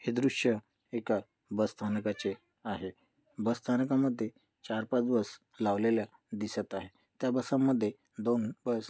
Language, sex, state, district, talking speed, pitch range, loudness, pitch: Marathi, male, Maharashtra, Dhule, 115 wpm, 105-125 Hz, -33 LUFS, 110 Hz